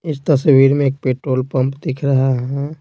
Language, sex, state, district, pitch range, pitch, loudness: Hindi, male, Bihar, Patna, 130-145 Hz, 135 Hz, -16 LUFS